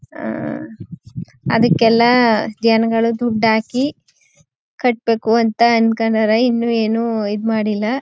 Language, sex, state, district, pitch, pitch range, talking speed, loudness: Kannada, female, Karnataka, Chamarajanagar, 225 Hz, 220-235 Hz, 80 wpm, -16 LUFS